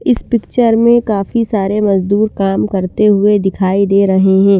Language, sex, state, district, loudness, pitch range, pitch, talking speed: Hindi, female, Bihar, Patna, -12 LUFS, 195-225 Hz, 200 Hz, 170 wpm